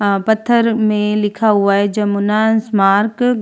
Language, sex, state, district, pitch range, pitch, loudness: Hindi, female, Uttar Pradesh, Hamirpur, 205-220 Hz, 210 Hz, -14 LUFS